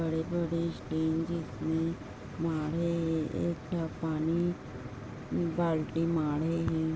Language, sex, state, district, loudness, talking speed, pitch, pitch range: Hindi, female, Maharashtra, Nagpur, -32 LUFS, 45 wpm, 160 Hz, 155-170 Hz